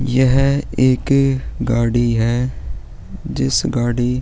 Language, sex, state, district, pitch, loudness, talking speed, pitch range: Hindi, male, Uttarakhand, Tehri Garhwal, 125 Hz, -17 LUFS, 100 wpm, 120-130 Hz